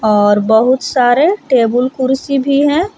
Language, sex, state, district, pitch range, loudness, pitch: Hindi, female, Jharkhand, Palamu, 235-280 Hz, -12 LUFS, 260 Hz